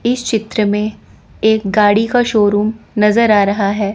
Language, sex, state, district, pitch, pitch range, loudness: Hindi, female, Chandigarh, Chandigarh, 215 Hz, 205-225 Hz, -14 LUFS